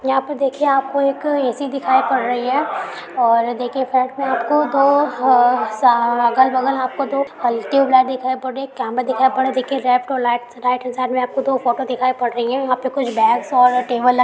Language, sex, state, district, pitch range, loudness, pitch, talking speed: Hindi, female, Uttar Pradesh, Hamirpur, 245-270 Hz, -17 LUFS, 255 Hz, 230 wpm